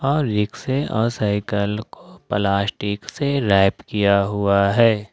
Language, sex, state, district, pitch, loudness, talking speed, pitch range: Hindi, male, Jharkhand, Ranchi, 105 Hz, -20 LUFS, 130 wpm, 100-115 Hz